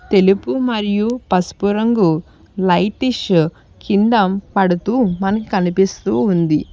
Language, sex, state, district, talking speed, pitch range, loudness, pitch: Telugu, female, Telangana, Hyderabad, 90 wpm, 180-215 Hz, -16 LUFS, 195 Hz